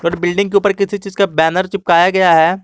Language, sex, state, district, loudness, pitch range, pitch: Hindi, male, Jharkhand, Garhwa, -14 LUFS, 170-200 Hz, 185 Hz